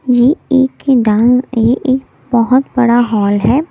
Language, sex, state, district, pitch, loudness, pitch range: Hindi, female, Delhi, New Delhi, 250 Hz, -12 LUFS, 235-265 Hz